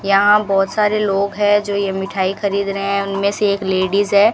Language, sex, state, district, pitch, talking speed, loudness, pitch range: Hindi, female, Rajasthan, Bikaner, 200 Hz, 220 wpm, -17 LUFS, 195-205 Hz